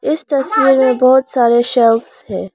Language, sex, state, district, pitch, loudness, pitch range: Hindi, female, Arunachal Pradesh, Lower Dibang Valley, 255 Hz, -12 LUFS, 235-265 Hz